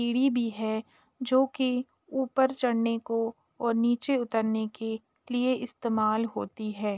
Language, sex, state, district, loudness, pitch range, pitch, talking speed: Hindi, female, Uttar Pradesh, Jalaun, -29 LUFS, 220-255 Hz, 235 Hz, 140 wpm